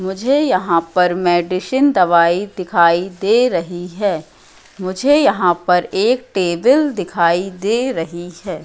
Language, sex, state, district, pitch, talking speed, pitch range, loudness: Hindi, female, Madhya Pradesh, Katni, 185 Hz, 125 wpm, 175-225 Hz, -16 LUFS